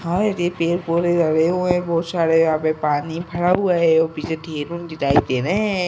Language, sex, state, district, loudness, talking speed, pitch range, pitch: Hindi, male, Uttar Pradesh, Etah, -19 LUFS, 205 wpm, 160-175 Hz, 165 Hz